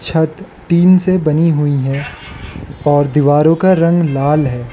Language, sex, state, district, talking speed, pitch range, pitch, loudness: Hindi, male, Arunachal Pradesh, Lower Dibang Valley, 150 wpm, 145-170 Hz, 150 Hz, -13 LUFS